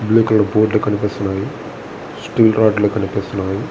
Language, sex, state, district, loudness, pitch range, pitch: Telugu, male, Andhra Pradesh, Visakhapatnam, -16 LUFS, 100-110 Hz, 105 Hz